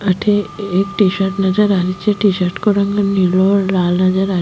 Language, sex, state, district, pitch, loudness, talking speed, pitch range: Rajasthani, female, Rajasthan, Nagaur, 195 Hz, -15 LUFS, 245 wpm, 185-200 Hz